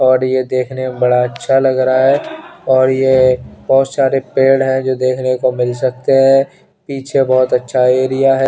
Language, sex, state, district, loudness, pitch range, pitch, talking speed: Hindi, male, Chandigarh, Chandigarh, -13 LUFS, 130-135 Hz, 130 Hz, 190 wpm